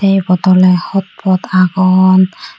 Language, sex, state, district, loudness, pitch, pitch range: Chakma, female, Tripura, Unakoti, -11 LUFS, 185 Hz, 185-190 Hz